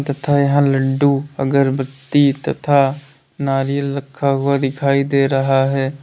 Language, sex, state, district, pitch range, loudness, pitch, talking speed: Hindi, male, Uttar Pradesh, Lalitpur, 135-140 Hz, -17 LUFS, 140 Hz, 120 wpm